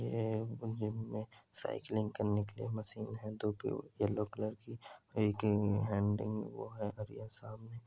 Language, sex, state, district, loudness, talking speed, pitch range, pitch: Hindi, male, Andhra Pradesh, Krishna, -38 LUFS, 130 wpm, 105-110 Hz, 110 Hz